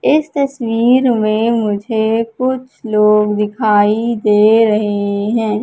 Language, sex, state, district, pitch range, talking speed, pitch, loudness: Hindi, female, Madhya Pradesh, Katni, 210-235 Hz, 105 wpm, 220 Hz, -14 LUFS